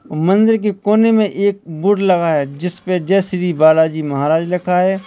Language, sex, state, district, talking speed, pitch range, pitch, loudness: Hindi, male, Uttar Pradesh, Lalitpur, 190 wpm, 160-200 Hz, 180 Hz, -15 LUFS